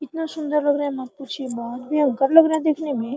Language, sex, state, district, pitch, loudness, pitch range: Hindi, female, Bihar, Araria, 290 Hz, -21 LUFS, 265-305 Hz